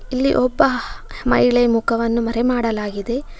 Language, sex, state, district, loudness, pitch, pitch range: Kannada, female, Karnataka, Bangalore, -18 LUFS, 235 Hz, 230-250 Hz